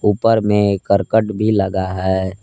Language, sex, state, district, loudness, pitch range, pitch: Hindi, male, Jharkhand, Palamu, -16 LUFS, 95-105 Hz, 100 Hz